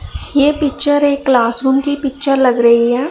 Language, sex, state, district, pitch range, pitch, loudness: Hindi, female, Punjab, Pathankot, 250-290 Hz, 275 Hz, -13 LUFS